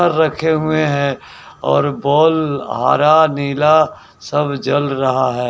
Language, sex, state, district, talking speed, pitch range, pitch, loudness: Hindi, male, Bihar, West Champaran, 130 wpm, 135-155 Hz, 145 Hz, -15 LUFS